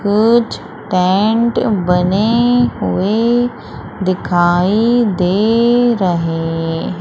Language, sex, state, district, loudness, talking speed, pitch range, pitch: Hindi, female, Madhya Pradesh, Umaria, -14 LUFS, 60 wpm, 180-235 Hz, 205 Hz